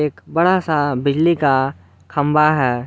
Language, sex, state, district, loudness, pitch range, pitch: Hindi, male, Jharkhand, Garhwa, -17 LUFS, 130-155 Hz, 145 Hz